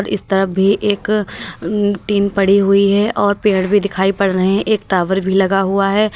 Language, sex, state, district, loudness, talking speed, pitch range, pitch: Hindi, female, Uttar Pradesh, Lalitpur, -15 LUFS, 205 wpm, 195-205 Hz, 200 Hz